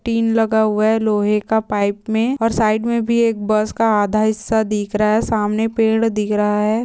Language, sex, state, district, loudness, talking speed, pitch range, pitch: Hindi, female, Maharashtra, Dhule, -17 LUFS, 220 wpm, 210-225 Hz, 220 Hz